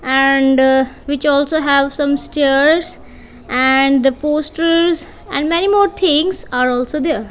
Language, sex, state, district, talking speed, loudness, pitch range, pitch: English, female, Punjab, Kapurthala, 130 wpm, -14 LUFS, 270-320 Hz, 285 Hz